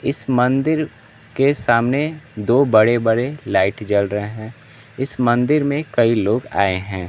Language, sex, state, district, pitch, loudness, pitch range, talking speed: Hindi, male, Bihar, Kaimur, 120 Hz, -18 LUFS, 110-140 Hz, 150 wpm